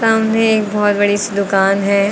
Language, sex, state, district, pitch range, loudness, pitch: Hindi, female, Uttar Pradesh, Lucknow, 200-220 Hz, -14 LUFS, 205 Hz